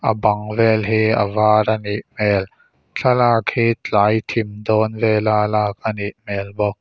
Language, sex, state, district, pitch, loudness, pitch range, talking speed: Mizo, male, Mizoram, Aizawl, 110 Hz, -18 LUFS, 105-110 Hz, 175 wpm